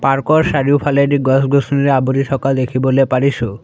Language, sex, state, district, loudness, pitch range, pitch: Assamese, male, Assam, Sonitpur, -14 LUFS, 130-140 Hz, 135 Hz